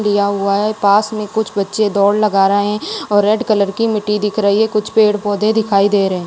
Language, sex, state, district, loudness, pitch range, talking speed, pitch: Hindi, female, Rajasthan, Bikaner, -15 LUFS, 200-215 Hz, 240 wpm, 210 Hz